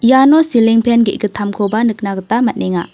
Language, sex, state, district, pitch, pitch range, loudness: Garo, female, Meghalaya, West Garo Hills, 225 Hz, 205-235 Hz, -13 LUFS